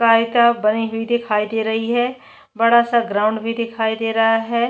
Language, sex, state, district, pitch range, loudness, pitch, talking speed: Hindi, female, Chhattisgarh, Bastar, 225-235 Hz, -18 LUFS, 225 Hz, 190 wpm